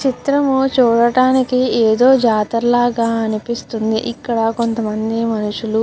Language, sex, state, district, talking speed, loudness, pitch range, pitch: Telugu, female, Andhra Pradesh, Guntur, 105 wpm, -16 LUFS, 225-250 Hz, 235 Hz